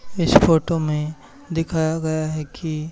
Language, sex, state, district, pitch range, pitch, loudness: Hindi, male, Haryana, Charkhi Dadri, 155-165 Hz, 160 Hz, -21 LUFS